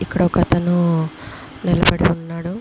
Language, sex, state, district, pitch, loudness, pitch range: Telugu, female, Andhra Pradesh, Visakhapatnam, 170 Hz, -18 LUFS, 160-175 Hz